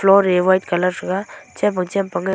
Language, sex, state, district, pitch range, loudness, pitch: Wancho, female, Arunachal Pradesh, Longding, 180-195 Hz, -18 LUFS, 190 Hz